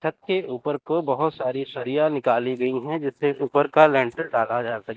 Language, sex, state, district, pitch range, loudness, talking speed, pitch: Hindi, male, Chandigarh, Chandigarh, 125-155 Hz, -23 LUFS, 215 wpm, 140 Hz